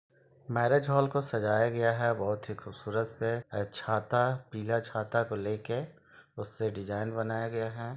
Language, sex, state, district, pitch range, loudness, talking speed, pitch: Hindi, male, Bihar, Sitamarhi, 105-120 Hz, -31 LUFS, 160 wpm, 115 Hz